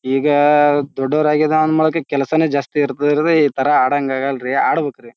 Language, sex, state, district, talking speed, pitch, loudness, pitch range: Kannada, male, Karnataka, Bijapur, 150 wpm, 145 Hz, -16 LUFS, 135-155 Hz